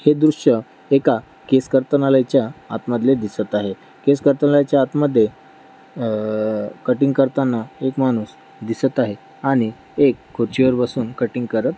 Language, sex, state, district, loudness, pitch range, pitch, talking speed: Marathi, male, Maharashtra, Dhule, -19 LUFS, 115-140 Hz, 130 Hz, 125 wpm